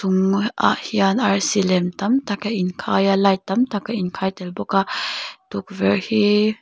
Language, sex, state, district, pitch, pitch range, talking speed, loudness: Mizo, female, Mizoram, Aizawl, 195 Hz, 190-210 Hz, 200 wpm, -20 LUFS